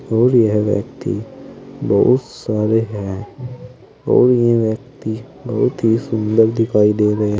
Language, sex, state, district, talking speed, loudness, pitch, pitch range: Hindi, male, Uttar Pradesh, Saharanpur, 120 wpm, -17 LUFS, 110 Hz, 105-125 Hz